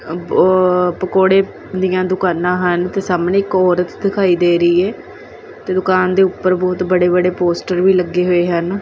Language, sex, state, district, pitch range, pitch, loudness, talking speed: Punjabi, female, Punjab, Kapurthala, 180-185 Hz, 185 Hz, -15 LUFS, 175 wpm